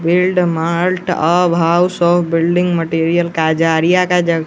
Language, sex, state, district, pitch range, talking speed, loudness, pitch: Hindi, male, Bihar, West Champaran, 165-180 Hz, 105 wpm, -14 LUFS, 170 Hz